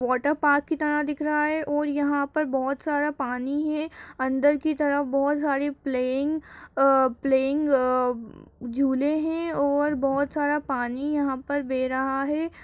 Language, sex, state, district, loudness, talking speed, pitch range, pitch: Hindi, female, Uttar Pradesh, Jyotiba Phule Nagar, -25 LUFS, 160 wpm, 265-295 Hz, 285 Hz